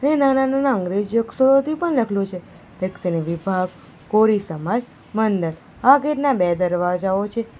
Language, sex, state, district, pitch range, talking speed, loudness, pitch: Gujarati, female, Gujarat, Valsad, 180-265 Hz, 140 wpm, -20 LUFS, 210 Hz